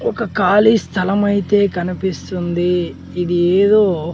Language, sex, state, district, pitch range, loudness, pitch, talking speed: Telugu, male, Andhra Pradesh, Sri Satya Sai, 175-205 Hz, -16 LUFS, 190 Hz, 115 wpm